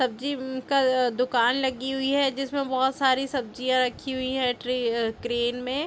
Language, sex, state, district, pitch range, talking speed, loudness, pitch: Hindi, female, Chhattisgarh, Bilaspur, 250-270 Hz, 185 wpm, -25 LUFS, 260 Hz